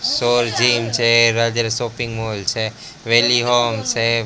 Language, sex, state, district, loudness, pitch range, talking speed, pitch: Gujarati, male, Gujarat, Gandhinagar, -17 LUFS, 115-120 Hz, 70 wpm, 115 Hz